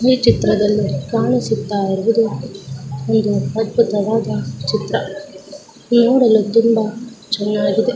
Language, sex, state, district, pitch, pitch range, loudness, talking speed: Kannada, female, Karnataka, Dakshina Kannada, 215 Hz, 200-230 Hz, -17 LUFS, 75 wpm